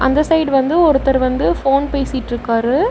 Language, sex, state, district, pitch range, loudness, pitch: Tamil, female, Tamil Nadu, Namakkal, 260-295 Hz, -15 LUFS, 270 Hz